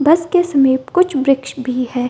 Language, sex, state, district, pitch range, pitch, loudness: Hindi, female, Bihar, Gopalganj, 255-330 Hz, 275 Hz, -15 LUFS